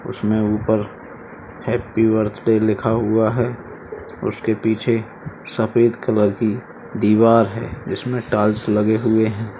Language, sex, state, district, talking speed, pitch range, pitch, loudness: Hindi, male, Uttar Pradesh, Budaun, 120 wpm, 110-115 Hz, 110 Hz, -19 LUFS